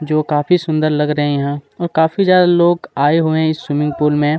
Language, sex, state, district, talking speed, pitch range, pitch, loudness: Hindi, male, Chhattisgarh, Kabirdham, 245 wpm, 150-165 Hz, 155 Hz, -15 LUFS